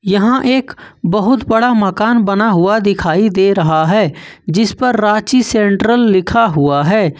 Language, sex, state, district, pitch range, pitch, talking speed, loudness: Hindi, male, Jharkhand, Ranchi, 190-230 Hz, 210 Hz, 150 wpm, -12 LUFS